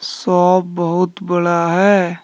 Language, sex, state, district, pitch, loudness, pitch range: Hindi, male, Jharkhand, Deoghar, 180 Hz, -15 LUFS, 175-185 Hz